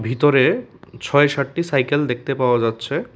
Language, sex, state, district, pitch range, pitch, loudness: Bengali, male, Tripura, West Tripura, 125-145 Hz, 135 Hz, -19 LUFS